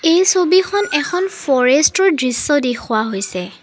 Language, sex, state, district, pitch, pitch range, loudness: Assamese, female, Assam, Sonitpur, 290 Hz, 250-370 Hz, -15 LUFS